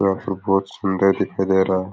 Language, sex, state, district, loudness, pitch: Rajasthani, male, Rajasthan, Nagaur, -20 LUFS, 95 Hz